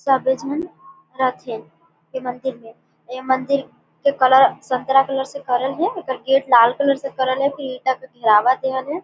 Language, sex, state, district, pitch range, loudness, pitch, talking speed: Surgujia, female, Chhattisgarh, Sarguja, 255-275 Hz, -19 LUFS, 260 Hz, 180 wpm